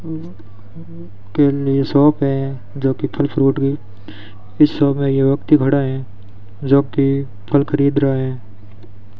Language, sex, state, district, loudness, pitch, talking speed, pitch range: Hindi, male, Rajasthan, Bikaner, -17 LUFS, 135 Hz, 130 wpm, 105-140 Hz